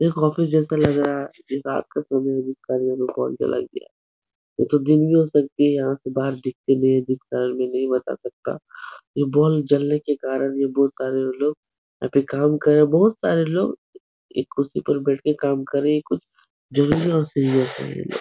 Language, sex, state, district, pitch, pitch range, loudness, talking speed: Hindi, male, Uttar Pradesh, Etah, 140 Hz, 135-150 Hz, -21 LUFS, 205 wpm